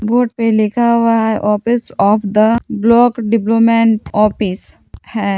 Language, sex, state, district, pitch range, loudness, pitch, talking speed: Hindi, female, Jharkhand, Palamu, 215-230 Hz, -13 LUFS, 225 Hz, 135 wpm